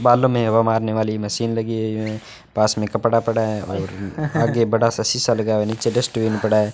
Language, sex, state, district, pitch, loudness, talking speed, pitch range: Hindi, male, Rajasthan, Bikaner, 110 Hz, -20 LUFS, 220 wpm, 110-115 Hz